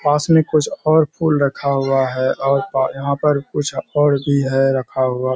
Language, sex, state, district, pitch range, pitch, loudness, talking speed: Hindi, male, Bihar, Kishanganj, 135-150 Hz, 140 Hz, -17 LUFS, 200 wpm